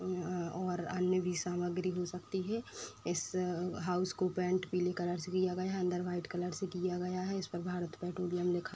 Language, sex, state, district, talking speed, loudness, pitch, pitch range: Hindi, female, Uttar Pradesh, Etah, 210 wpm, -37 LUFS, 180 Hz, 180-185 Hz